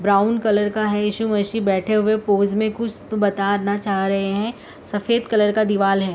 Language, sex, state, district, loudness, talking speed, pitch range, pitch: Hindi, female, Uttar Pradesh, Etah, -20 LUFS, 195 wpm, 200-215 Hz, 205 Hz